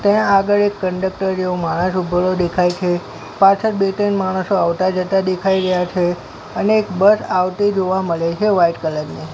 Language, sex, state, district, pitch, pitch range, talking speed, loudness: Gujarati, male, Gujarat, Gandhinagar, 185 Hz, 175-195 Hz, 180 wpm, -17 LUFS